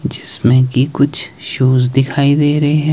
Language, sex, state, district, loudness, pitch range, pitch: Hindi, male, Himachal Pradesh, Shimla, -14 LUFS, 130-145 Hz, 140 Hz